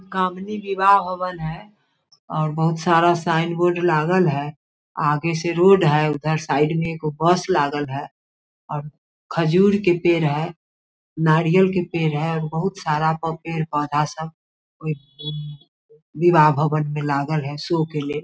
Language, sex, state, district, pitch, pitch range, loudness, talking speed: Hindi, female, Bihar, Sitamarhi, 160 Hz, 150-175 Hz, -20 LUFS, 150 wpm